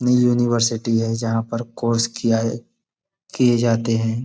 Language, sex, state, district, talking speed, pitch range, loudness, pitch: Hindi, male, Uttar Pradesh, Budaun, 140 wpm, 115-120 Hz, -20 LUFS, 115 Hz